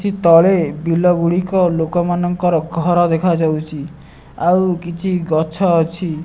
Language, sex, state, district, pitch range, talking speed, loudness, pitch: Odia, male, Odisha, Nuapada, 165-180 Hz, 95 wpm, -16 LUFS, 170 Hz